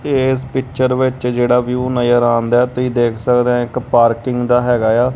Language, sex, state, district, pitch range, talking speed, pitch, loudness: Punjabi, male, Punjab, Kapurthala, 120-125 Hz, 185 wpm, 125 Hz, -15 LUFS